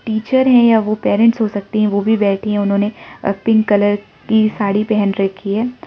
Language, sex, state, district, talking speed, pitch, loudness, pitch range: Hindi, male, Arunachal Pradesh, Lower Dibang Valley, 205 wpm, 215 Hz, -15 LUFS, 205-220 Hz